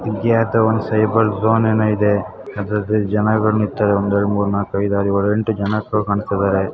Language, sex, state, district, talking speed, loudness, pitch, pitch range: Kannada, female, Karnataka, Chamarajanagar, 180 wpm, -17 LUFS, 105 Hz, 100-110 Hz